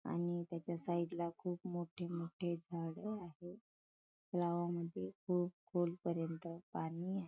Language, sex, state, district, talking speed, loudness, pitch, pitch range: Marathi, female, Maharashtra, Chandrapur, 125 wpm, -42 LUFS, 175 Hz, 170-175 Hz